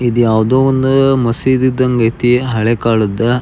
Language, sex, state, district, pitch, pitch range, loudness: Kannada, male, Karnataka, Belgaum, 120 Hz, 115-130 Hz, -13 LUFS